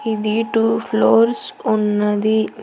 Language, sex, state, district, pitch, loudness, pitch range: Telugu, female, Andhra Pradesh, Annamaya, 215 Hz, -17 LUFS, 205-220 Hz